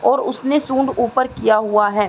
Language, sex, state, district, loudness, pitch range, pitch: Hindi, female, Bihar, East Champaran, -17 LUFS, 215-265 Hz, 240 Hz